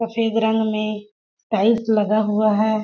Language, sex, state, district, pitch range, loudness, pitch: Hindi, female, Chhattisgarh, Balrampur, 215-225 Hz, -19 LUFS, 215 Hz